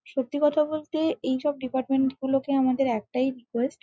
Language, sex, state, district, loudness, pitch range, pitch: Bengali, female, West Bengal, Malda, -26 LUFS, 260-295 Hz, 265 Hz